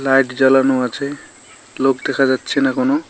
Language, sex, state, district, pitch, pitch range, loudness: Bengali, male, West Bengal, Cooch Behar, 135 Hz, 135-145 Hz, -17 LUFS